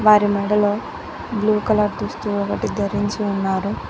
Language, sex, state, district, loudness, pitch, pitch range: Telugu, female, Telangana, Mahabubabad, -20 LUFS, 205 Hz, 200-210 Hz